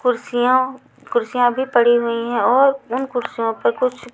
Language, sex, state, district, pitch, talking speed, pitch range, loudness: Hindi, female, Chhattisgarh, Raipur, 245 Hz, 160 wpm, 235-255 Hz, -18 LUFS